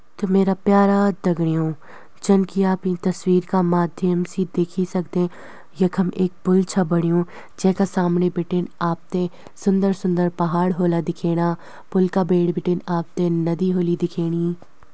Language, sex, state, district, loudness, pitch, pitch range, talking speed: Garhwali, female, Uttarakhand, Uttarkashi, -21 LUFS, 180 Hz, 175-190 Hz, 145 wpm